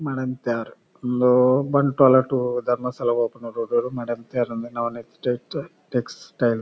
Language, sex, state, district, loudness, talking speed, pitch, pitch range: Tulu, male, Karnataka, Dakshina Kannada, -23 LUFS, 125 wpm, 125 Hz, 120-130 Hz